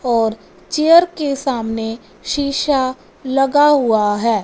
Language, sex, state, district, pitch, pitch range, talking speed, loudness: Hindi, female, Punjab, Fazilka, 265 Hz, 225-290 Hz, 110 wpm, -16 LUFS